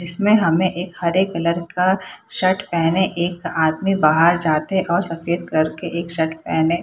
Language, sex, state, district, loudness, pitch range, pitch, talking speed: Hindi, female, Bihar, Saharsa, -19 LUFS, 165-185 Hz, 170 Hz, 175 wpm